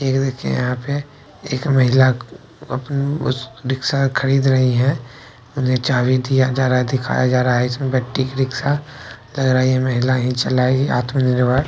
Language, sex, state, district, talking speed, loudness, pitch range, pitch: Maithili, male, Bihar, Kishanganj, 175 wpm, -18 LUFS, 125-135 Hz, 130 Hz